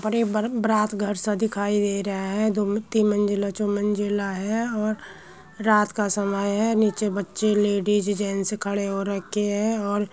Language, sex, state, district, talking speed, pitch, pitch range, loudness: Hindi, female, Uttar Pradesh, Muzaffarnagar, 170 wpm, 205 Hz, 200-215 Hz, -24 LUFS